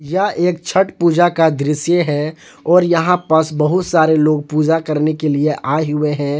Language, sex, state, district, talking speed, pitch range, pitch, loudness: Hindi, male, Jharkhand, Palamu, 190 wpm, 150-175 Hz, 160 Hz, -15 LUFS